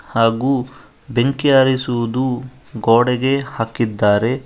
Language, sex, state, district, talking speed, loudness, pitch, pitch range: Kannada, male, Karnataka, Koppal, 65 wpm, -17 LUFS, 125 Hz, 115-130 Hz